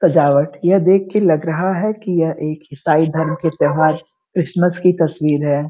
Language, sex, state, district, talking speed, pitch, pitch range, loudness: Hindi, female, Uttar Pradesh, Gorakhpur, 190 wpm, 165 Hz, 155-185 Hz, -16 LUFS